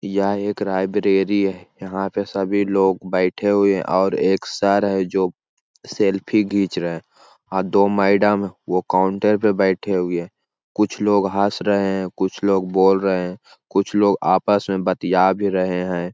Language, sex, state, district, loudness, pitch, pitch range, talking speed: Hindi, male, Jharkhand, Jamtara, -19 LUFS, 95 Hz, 95-100 Hz, 175 wpm